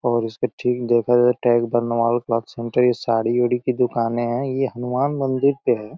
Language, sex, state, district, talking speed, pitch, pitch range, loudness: Hindi, male, Uttar Pradesh, Deoria, 190 wpm, 120 Hz, 115-125 Hz, -20 LUFS